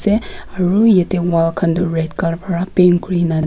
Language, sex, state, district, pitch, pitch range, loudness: Nagamese, female, Nagaland, Kohima, 175 Hz, 165-185 Hz, -16 LUFS